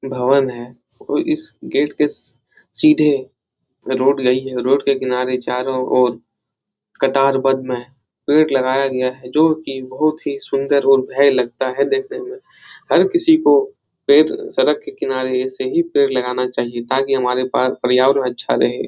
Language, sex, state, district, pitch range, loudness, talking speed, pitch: Hindi, male, Bihar, Jahanabad, 130-145 Hz, -17 LUFS, 165 wpm, 135 Hz